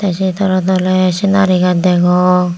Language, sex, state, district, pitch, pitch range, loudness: Chakma, female, Tripura, Unakoti, 185 Hz, 180-190 Hz, -12 LUFS